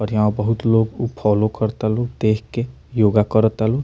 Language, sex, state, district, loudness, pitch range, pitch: Bhojpuri, male, Bihar, Muzaffarpur, -19 LUFS, 105-115 Hz, 110 Hz